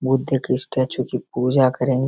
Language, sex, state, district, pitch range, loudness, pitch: Hindi, male, Bihar, Darbhanga, 125-135 Hz, -20 LUFS, 130 Hz